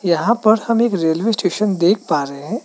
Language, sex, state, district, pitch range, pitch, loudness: Hindi, male, Meghalaya, West Garo Hills, 170-225 Hz, 200 Hz, -17 LUFS